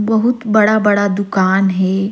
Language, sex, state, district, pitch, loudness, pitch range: Surgujia, female, Chhattisgarh, Sarguja, 205 Hz, -14 LUFS, 190-215 Hz